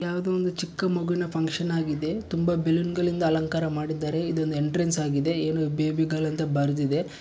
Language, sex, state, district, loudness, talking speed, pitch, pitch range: Kannada, male, Karnataka, Bellary, -26 LUFS, 135 wpm, 160 Hz, 155-175 Hz